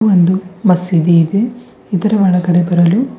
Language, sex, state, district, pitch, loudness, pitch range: Kannada, female, Karnataka, Bidar, 185 Hz, -13 LUFS, 175-205 Hz